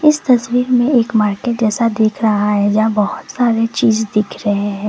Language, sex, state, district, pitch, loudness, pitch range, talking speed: Hindi, female, Assam, Kamrup Metropolitan, 220 Hz, -15 LUFS, 210-240 Hz, 195 wpm